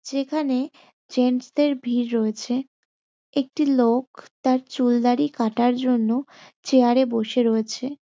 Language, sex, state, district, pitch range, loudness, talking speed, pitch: Bengali, female, West Bengal, North 24 Parganas, 240-275 Hz, -22 LUFS, 110 wpm, 255 Hz